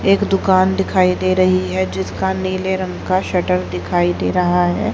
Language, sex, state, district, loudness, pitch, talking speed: Hindi, female, Haryana, Jhajjar, -17 LUFS, 185 Hz, 180 wpm